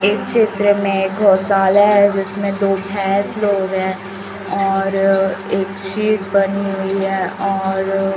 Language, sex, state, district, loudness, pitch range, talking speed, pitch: Hindi, male, Chhattisgarh, Raipur, -17 LUFS, 195-200 Hz, 130 wpm, 195 Hz